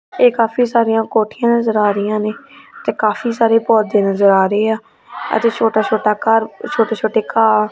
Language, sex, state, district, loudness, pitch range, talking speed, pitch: Punjabi, female, Punjab, Kapurthala, -15 LUFS, 215-230 Hz, 180 wpm, 220 Hz